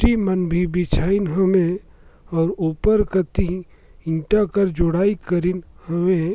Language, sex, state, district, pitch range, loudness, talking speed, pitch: Surgujia, male, Chhattisgarh, Sarguja, 170-195 Hz, -20 LUFS, 130 wpm, 180 Hz